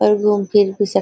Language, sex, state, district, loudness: Hindi, female, Maharashtra, Nagpur, -16 LUFS